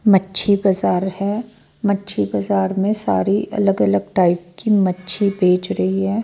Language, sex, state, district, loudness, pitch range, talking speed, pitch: Hindi, female, Bihar, Patna, -18 LUFS, 180-200 Hz, 145 wpm, 195 Hz